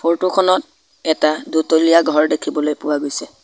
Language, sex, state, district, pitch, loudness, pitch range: Assamese, male, Assam, Sonitpur, 160 Hz, -17 LUFS, 150-185 Hz